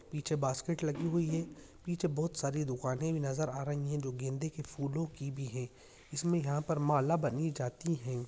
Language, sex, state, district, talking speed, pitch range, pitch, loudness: Hindi, male, Andhra Pradesh, Visakhapatnam, 205 wpm, 135-160 Hz, 150 Hz, -35 LUFS